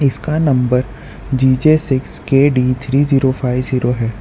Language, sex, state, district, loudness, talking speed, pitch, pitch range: Hindi, male, Gujarat, Valsad, -15 LUFS, 170 wpm, 130 Hz, 125-140 Hz